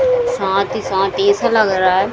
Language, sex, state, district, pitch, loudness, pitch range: Hindi, female, Bihar, Saran, 200 Hz, -16 LUFS, 190-235 Hz